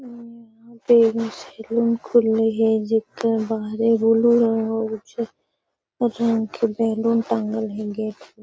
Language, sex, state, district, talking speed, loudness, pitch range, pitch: Magahi, female, Bihar, Gaya, 120 wpm, -21 LUFS, 220-230 Hz, 225 Hz